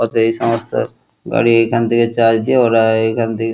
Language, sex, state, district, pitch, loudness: Bengali, male, West Bengal, Kolkata, 115 Hz, -14 LUFS